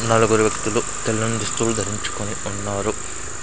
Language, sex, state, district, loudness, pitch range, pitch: Telugu, male, Andhra Pradesh, Sri Satya Sai, -21 LUFS, 100-115 Hz, 110 Hz